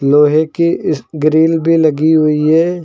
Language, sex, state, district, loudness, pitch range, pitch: Hindi, male, Uttar Pradesh, Lucknow, -12 LUFS, 150-165 Hz, 155 Hz